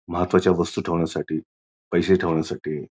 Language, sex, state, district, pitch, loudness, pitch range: Marathi, male, Maharashtra, Pune, 85 Hz, -23 LUFS, 80-90 Hz